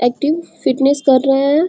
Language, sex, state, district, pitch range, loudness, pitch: Hindi, female, Bihar, Muzaffarpur, 265-295 Hz, -15 LUFS, 275 Hz